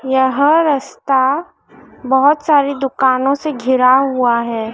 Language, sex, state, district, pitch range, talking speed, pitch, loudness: Hindi, female, Madhya Pradesh, Dhar, 260-285 Hz, 115 wpm, 270 Hz, -14 LUFS